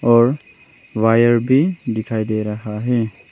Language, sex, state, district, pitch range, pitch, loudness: Hindi, male, Arunachal Pradesh, Longding, 110-120 Hz, 115 Hz, -18 LUFS